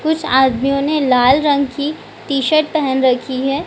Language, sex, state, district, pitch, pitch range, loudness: Hindi, female, Bihar, Gaya, 275 Hz, 265-300 Hz, -15 LUFS